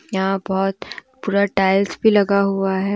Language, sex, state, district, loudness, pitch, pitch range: Hindi, female, Jharkhand, Deoghar, -18 LUFS, 195 Hz, 195-200 Hz